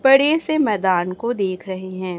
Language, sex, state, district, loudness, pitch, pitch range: Hindi, female, Chhattisgarh, Raipur, -20 LUFS, 195 Hz, 185-270 Hz